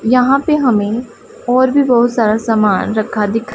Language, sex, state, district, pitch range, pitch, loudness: Hindi, female, Punjab, Pathankot, 215-250 Hz, 235 Hz, -13 LUFS